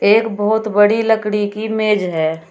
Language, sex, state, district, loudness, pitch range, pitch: Hindi, female, Uttar Pradesh, Shamli, -16 LUFS, 205-220 Hz, 210 Hz